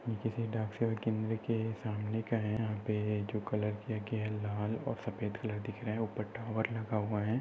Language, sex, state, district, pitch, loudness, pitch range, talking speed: Hindi, male, Maharashtra, Aurangabad, 110 Hz, -36 LUFS, 105-110 Hz, 220 wpm